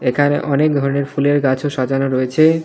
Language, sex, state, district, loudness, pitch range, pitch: Bengali, male, West Bengal, Alipurduar, -16 LUFS, 135-145 Hz, 140 Hz